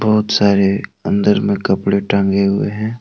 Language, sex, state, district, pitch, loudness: Hindi, male, Jharkhand, Deoghar, 105 Hz, -15 LUFS